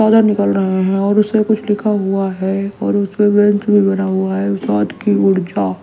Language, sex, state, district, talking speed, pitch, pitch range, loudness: Hindi, female, Delhi, New Delhi, 205 wpm, 195 Hz, 190-210 Hz, -15 LUFS